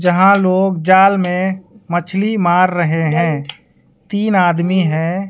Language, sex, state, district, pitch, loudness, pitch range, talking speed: Hindi, male, Bihar, West Champaran, 180 Hz, -14 LUFS, 170-190 Hz, 125 wpm